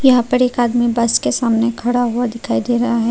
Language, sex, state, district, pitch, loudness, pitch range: Hindi, female, Tripura, Unakoti, 240 Hz, -16 LUFS, 235-245 Hz